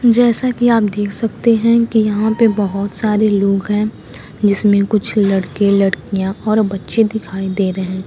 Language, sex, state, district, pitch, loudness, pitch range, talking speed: Hindi, female, Bihar, Kaimur, 210 Hz, -15 LUFS, 195-225 Hz, 170 wpm